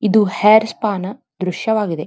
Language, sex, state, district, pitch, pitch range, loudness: Kannada, female, Karnataka, Dharwad, 210 Hz, 185-220 Hz, -16 LUFS